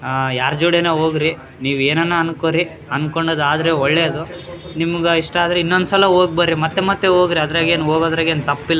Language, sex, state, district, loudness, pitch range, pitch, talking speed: Kannada, male, Karnataka, Raichur, -16 LUFS, 155-175 Hz, 165 Hz, 155 wpm